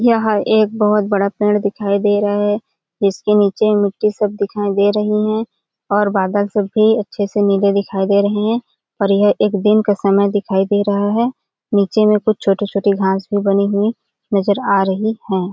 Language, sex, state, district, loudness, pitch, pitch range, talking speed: Hindi, female, Chhattisgarh, Balrampur, -16 LUFS, 205 Hz, 200-210 Hz, 195 wpm